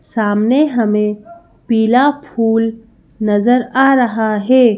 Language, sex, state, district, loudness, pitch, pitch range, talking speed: Hindi, female, Madhya Pradesh, Bhopal, -14 LUFS, 230 Hz, 220-255 Hz, 100 wpm